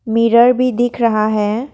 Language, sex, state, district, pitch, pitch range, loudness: Hindi, female, Assam, Kamrup Metropolitan, 230 Hz, 220-245 Hz, -14 LUFS